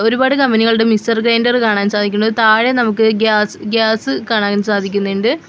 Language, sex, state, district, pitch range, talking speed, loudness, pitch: Malayalam, female, Kerala, Kollam, 210-230 Hz, 140 wpm, -14 LUFS, 220 Hz